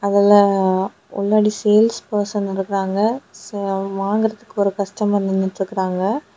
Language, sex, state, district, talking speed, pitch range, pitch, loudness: Tamil, female, Tamil Nadu, Kanyakumari, 105 wpm, 195-210 Hz, 200 Hz, -19 LUFS